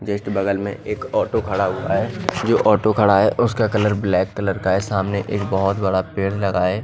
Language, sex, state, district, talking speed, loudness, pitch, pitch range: Hindi, male, Bihar, Katihar, 220 wpm, -19 LUFS, 100 Hz, 95-105 Hz